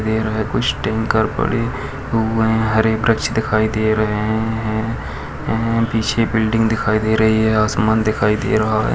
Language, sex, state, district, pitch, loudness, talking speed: Hindi, male, Bihar, Madhepura, 110 Hz, -18 LUFS, 145 wpm